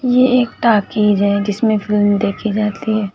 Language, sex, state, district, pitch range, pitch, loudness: Hindi, female, Uttar Pradesh, Hamirpur, 205-225 Hz, 210 Hz, -15 LUFS